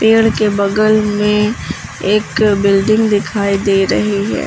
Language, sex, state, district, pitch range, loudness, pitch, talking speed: Hindi, female, Uttar Pradesh, Lucknow, 200-215 Hz, -13 LUFS, 210 Hz, 135 wpm